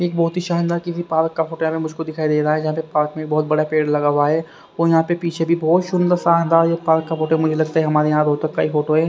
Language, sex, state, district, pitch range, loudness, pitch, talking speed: Hindi, male, Haryana, Rohtak, 155-170 Hz, -18 LUFS, 160 Hz, 310 wpm